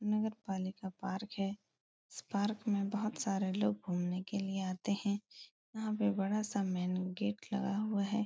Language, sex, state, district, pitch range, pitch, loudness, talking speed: Hindi, female, Uttar Pradesh, Etah, 190-210 Hz, 200 Hz, -37 LUFS, 160 wpm